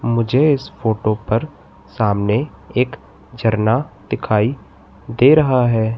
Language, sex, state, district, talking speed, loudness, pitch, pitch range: Hindi, male, Madhya Pradesh, Katni, 110 wpm, -17 LUFS, 115 Hz, 105-130 Hz